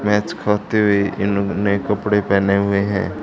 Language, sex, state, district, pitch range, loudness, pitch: Hindi, male, Haryana, Charkhi Dadri, 100-105 Hz, -18 LUFS, 100 Hz